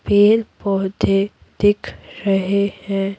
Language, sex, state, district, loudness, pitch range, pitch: Hindi, female, Bihar, Patna, -19 LUFS, 195-205 Hz, 200 Hz